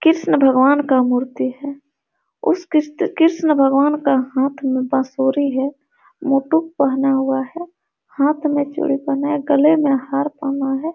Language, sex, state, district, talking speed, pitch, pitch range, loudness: Hindi, male, Bihar, Supaul, 140 wpm, 285 Hz, 270-305 Hz, -18 LUFS